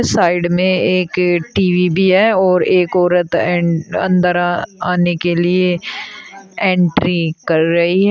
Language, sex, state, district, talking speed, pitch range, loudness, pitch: Hindi, female, Uttar Pradesh, Shamli, 125 wpm, 175-185 Hz, -14 LUFS, 180 Hz